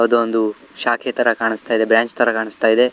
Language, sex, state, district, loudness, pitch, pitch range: Kannada, male, Karnataka, Shimoga, -18 LUFS, 115 Hz, 110-120 Hz